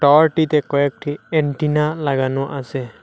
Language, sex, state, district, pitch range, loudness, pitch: Bengali, male, Assam, Hailakandi, 140-150 Hz, -19 LUFS, 145 Hz